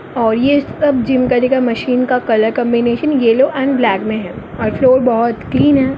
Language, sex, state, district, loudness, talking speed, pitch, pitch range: Hindi, female, Bihar, Gopalganj, -14 LUFS, 200 wpm, 250 Hz, 230-265 Hz